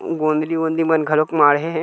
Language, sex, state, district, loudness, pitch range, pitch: Chhattisgarhi, male, Chhattisgarh, Kabirdham, -18 LUFS, 155-160 Hz, 160 Hz